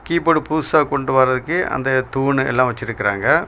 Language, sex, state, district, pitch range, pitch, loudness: Tamil, male, Tamil Nadu, Kanyakumari, 130-155 Hz, 135 Hz, -18 LUFS